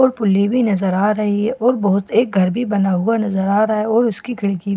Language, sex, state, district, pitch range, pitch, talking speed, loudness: Hindi, female, Bihar, Katihar, 195-230 Hz, 210 Hz, 275 wpm, -17 LUFS